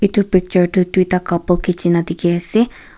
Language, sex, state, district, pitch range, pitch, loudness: Nagamese, female, Nagaland, Kohima, 175-190 Hz, 180 Hz, -16 LUFS